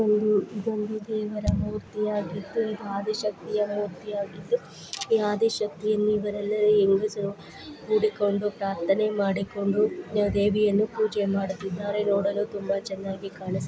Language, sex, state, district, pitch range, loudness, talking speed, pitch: Kannada, female, Karnataka, Dharwad, 200-210 Hz, -26 LUFS, 85 wpm, 205 Hz